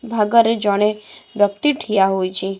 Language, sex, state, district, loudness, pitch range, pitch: Odia, female, Odisha, Khordha, -17 LUFS, 195-230 Hz, 210 Hz